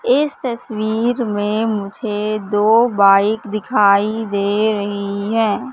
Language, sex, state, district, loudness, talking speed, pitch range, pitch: Hindi, female, Madhya Pradesh, Katni, -17 LUFS, 105 wpm, 205-225 Hz, 215 Hz